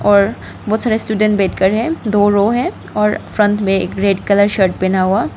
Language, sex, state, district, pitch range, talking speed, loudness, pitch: Hindi, female, Arunachal Pradesh, Papum Pare, 195-215 Hz, 200 wpm, -15 LUFS, 205 Hz